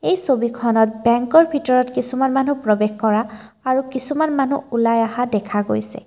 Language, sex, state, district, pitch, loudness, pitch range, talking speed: Assamese, female, Assam, Kamrup Metropolitan, 245 Hz, -18 LUFS, 220-270 Hz, 150 wpm